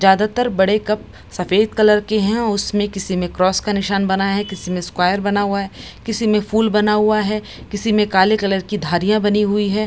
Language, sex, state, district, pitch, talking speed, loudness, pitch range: Hindi, female, Bihar, Samastipur, 205 Hz, 220 wpm, -17 LUFS, 195-215 Hz